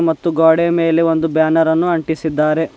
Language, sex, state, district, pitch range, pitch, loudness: Kannada, male, Karnataka, Bidar, 160-165 Hz, 160 Hz, -15 LUFS